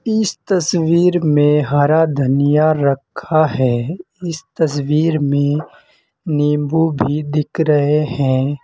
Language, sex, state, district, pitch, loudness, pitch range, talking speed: Hindi, male, Uttar Pradesh, Saharanpur, 150 Hz, -16 LUFS, 145-160 Hz, 105 wpm